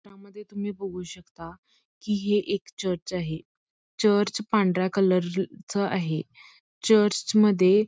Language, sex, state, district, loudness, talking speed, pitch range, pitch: Marathi, female, Karnataka, Belgaum, -25 LUFS, 105 wpm, 180-210 Hz, 200 Hz